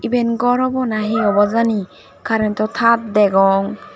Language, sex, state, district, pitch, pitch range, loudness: Chakma, female, Tripura, Dhalai, 220 Hz, 205-235 Hz, -16 LUFS